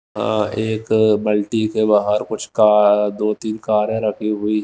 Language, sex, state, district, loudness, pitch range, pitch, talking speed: Hindi, male, Himachal Pradesh, Shimla, -18 LUFS, 105-110 Hz, 105 Hz, 105 wpm